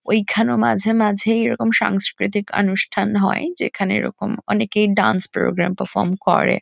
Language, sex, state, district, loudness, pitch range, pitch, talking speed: Bengali, female, West Bengal, Kolkata, -18 LUFS, 195-225 Hz, 205 Hz, 125 wpm